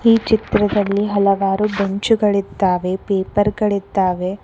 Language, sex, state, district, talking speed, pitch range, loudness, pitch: Kannada, female, Karnataka, Koppal, 65 wpm, 195-210 Hz, -17 LUFS, 200 Hz